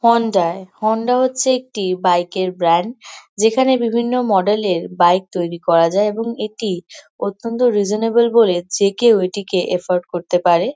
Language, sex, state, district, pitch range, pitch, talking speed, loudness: Bengali, female, West Bengal, North 24 Parganas, 180-230 Hz, 200 Hz, 150 wpm, -17 LUFS